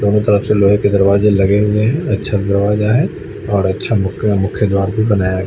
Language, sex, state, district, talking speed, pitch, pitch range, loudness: Hindi, male, Chandigarh, Chandigarh, 210 wpm, 100 Hz, 100-105 Hz, -14 LUFS